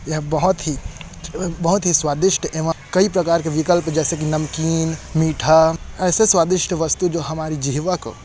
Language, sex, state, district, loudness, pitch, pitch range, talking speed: Hindi, male, Chhattisgarh, Korba, -18 LUFS, 160 Hz, 155-175 Hz, 155 wpm